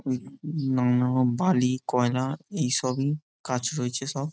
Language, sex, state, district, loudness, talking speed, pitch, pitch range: Bengali, male, West Bengal, Jhargram, -26 LUFS, 125 wpm, 130 Hz, 125-145 Hz